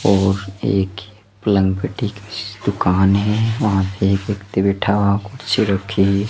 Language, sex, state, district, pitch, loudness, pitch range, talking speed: Hindi, male, Madhya Pradesh, Dhar, 100 Hz, -18 LUFS, 95-105 Hz, 115 wpm